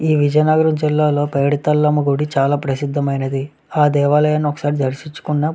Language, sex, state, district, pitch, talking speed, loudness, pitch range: Telugu, male, Andhra Pradesh, Visakhapatnam, 145 Hz, 130 wpm, -17 LUFS, 140-150 Hz